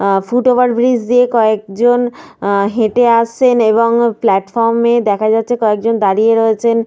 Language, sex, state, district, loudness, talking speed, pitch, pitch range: Bengali, female, Jharkhand, Sahebganj, -13 LUFS, 150 wpm, 230 Hz, 215-240 Hz